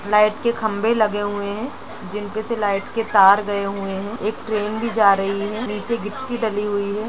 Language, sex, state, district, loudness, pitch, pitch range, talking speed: Hindi, female, Uttar Pradesh, Jalaun, -21 LUFS, 210 Hz, 205-220 Hz, 245 wpm